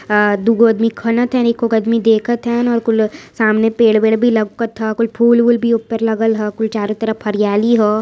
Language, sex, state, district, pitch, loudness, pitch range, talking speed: Hindi, female, Uttar Pradesh, Varanasi, 225 Hz, -15 LUFS, 220-235 Hz, 215 wpm